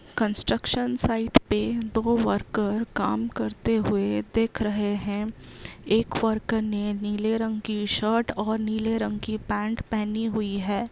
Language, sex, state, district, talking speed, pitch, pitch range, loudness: Hindi, female, Uttar Pradesh, Hamirpur, 145 wpm, 215 Hz, 205-225 Hz, -26 LUFS